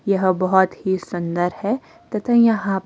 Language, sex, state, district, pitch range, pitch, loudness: Hindi, female, Himachal Pradesh, Shimla, 185-220 Hz, 195 Hz, -20 LUFS